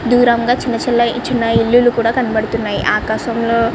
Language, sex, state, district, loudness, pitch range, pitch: Telugu, male, Andhra Pradesh, Srikakulam, -15 LUFS, 230-245 Hz, 235 Hz